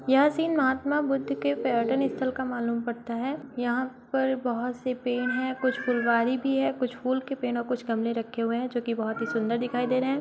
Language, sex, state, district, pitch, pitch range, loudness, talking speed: Hindi, female, Uttar Pradesh, Muzaffarnagar, 250 Hz, 235-265 Hz, -28 LUFS, 235 wpm